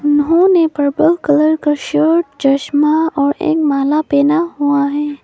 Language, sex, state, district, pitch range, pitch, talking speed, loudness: Hindi, female, Arunachal Pradesh, Papum Pare, 285-320 Hz, 295 Hz, 135 wpm, -14 LUFS